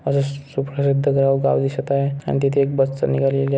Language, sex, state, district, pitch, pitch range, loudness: Marathi, male, Maharashtra, Chandrapur, 140 Hz, 135-140 Hz, -20 LUFS